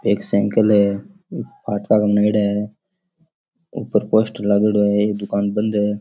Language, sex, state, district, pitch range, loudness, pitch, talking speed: Rajasthani, male, Rajasthan, Nagaur, 100-110 Hz, -18 LUFS, 105 Hz, 110 wpm